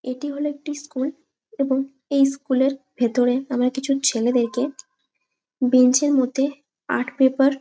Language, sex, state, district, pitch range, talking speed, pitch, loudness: Bengali, female, West Bengal, Malda, 255-280 Hz, 150 wpm, 270 Hz, -21 LUFS